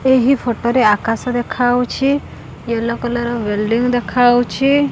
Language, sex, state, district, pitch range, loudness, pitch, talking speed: Odia, female, Odisha, Khordha, 235-255 Hz, -16 LUFS, 245 Hz, 135 wpm